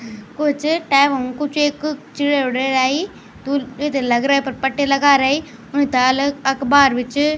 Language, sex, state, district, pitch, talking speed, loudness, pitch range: Garhwali, male, Uttarakhand, Tehri Garhwal, 280 Hz, 155 wpm, -17 LUFS, 260-290 Hz